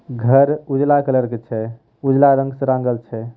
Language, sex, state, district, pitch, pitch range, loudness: Hindi, male, Bihar, Begusarai, 130 Hz, 120-135 Hz, -17 LUFS